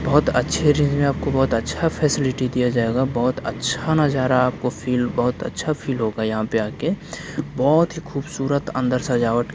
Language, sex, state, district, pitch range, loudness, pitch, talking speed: Hindi, male, Bihar, Kaimur, 125-150 Hz, -21 LUFS, 130 Hz, 170 wpm